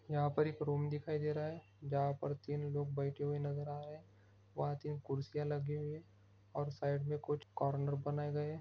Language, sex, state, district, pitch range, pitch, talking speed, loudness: Hindi, male, Bihar, Begusarai, 140-150 Hz, 145 Hz, 225 wpm, -40 LUFS